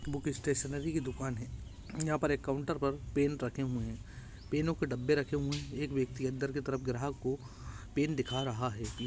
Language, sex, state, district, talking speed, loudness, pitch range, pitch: Hindi, male, Andhra Pradesh, Chittoor, 205 wpm, -35 LUFS, 125-145 Hz, 135 Hz